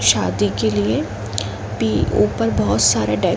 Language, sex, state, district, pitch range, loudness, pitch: Hindi, female, Uttar Pradesh, Jalaun, 100-110 Hz, -18 LUFS, 105 Hz